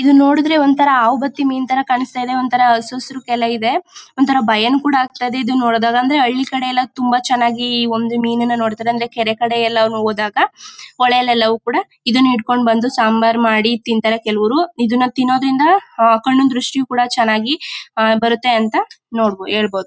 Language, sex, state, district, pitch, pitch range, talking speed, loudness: Kannada, female, Karnataka, Mysore, 245 Hz, 230-265 Hz, 150 wpm, -15 LUFS